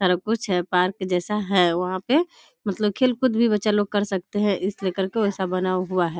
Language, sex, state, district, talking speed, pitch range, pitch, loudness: Hindi, female, Bihar, Darbhanga, 220 wpm, 185-210 Hz, 195 Hz, -23 LUFS